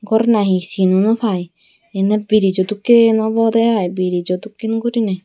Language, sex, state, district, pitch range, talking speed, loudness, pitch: Chakma, female, Tripura, Dhalai, 185-225 Hz, 160 wpm, -16 LUFS, 210 Hz